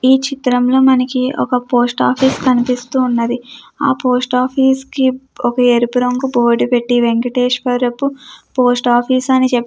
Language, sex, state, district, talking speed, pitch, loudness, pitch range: Telugu, female, Andhra Pradesh, Krishna, 145 wpm, 250 Hz, -14 LUFS, 245-260 Hz